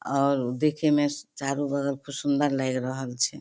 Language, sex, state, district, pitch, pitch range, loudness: Maithili, female, Bihar, Darbhanga, 140 Hz, 135-145 Hz, -26 LUFS